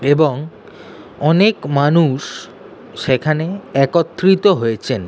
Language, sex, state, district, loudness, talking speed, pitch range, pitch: Bengali, male, West Bengal, Kolkata, -15 LUFS, 70 wpm, 135-170 Hz, 150 Hz